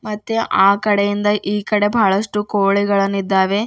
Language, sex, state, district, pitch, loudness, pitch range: Kannada, female, Karnataka, Bidar, 205 Hz, -17 LUFS, 200-210 Hz